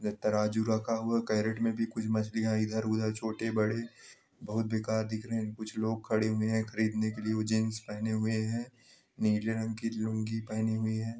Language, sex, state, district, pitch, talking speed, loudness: Hindi, male, Jharkhand, Sahebganj, 110 Hz, 200 wpm, -32 LUFS